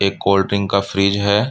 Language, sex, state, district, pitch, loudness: Hindi, male, Uttar Pradesh, Budaun, 100 Hz, -17 LUFS